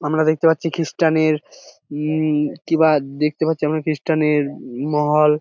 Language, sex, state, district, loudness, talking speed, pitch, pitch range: Bengali, male, West Bengal, Dakshin Dinajpur, -19 LUFS, 145 wpm, 155 Hz, 150-160 Hz